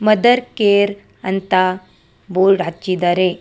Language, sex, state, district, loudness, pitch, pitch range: Kannada, female, Karnataka, Bangalore, -16 LUFS, 190 Hz, 185-205 Hz